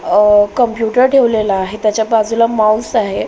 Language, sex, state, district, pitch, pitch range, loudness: Marathi, female, Maharashtra, Solapur, 225 Hz, 215-235 Hz, -13 LUFS